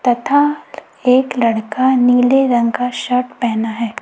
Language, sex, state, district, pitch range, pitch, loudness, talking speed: Hindi, female, Chhattisgarh, Raipur, 235-260 Hz, 245 Hz, -15 LUFS, 135 wpm